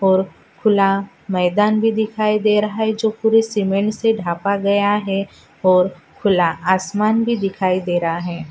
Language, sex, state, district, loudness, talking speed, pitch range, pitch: Hindi, female, Maharashtra, Nagpur, -18 LUFS, 160 wpm, 185-215 Hz, 200 Hz